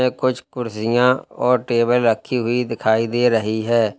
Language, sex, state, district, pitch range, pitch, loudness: Hindi, male, Uttar Pradesh, Lalitpur, 115-125 Hz, 120 Hz, -19 LUFS